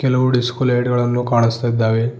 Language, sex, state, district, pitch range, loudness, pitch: Kannada, male, Karnataka, Bidar, 115-125 Hz, -17 LUFS, 120 Hz